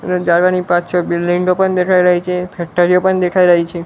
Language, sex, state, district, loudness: Gujarati, male, Gujarat, Gandhinagar, -14 LUFS